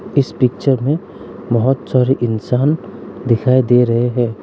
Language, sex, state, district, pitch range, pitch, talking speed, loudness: Hindi, male, Arunachal Pradesh, Lower Dibang Valley, 120-135 Hz, 125 Hz, 135 wpm, -16 LUFS